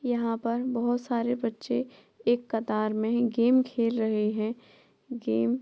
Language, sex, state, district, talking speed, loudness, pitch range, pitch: Hindi, female, Uttar Pradesh, Etah, 150 wpm, -28 LUFS, 220-240 Hz, 235 Hz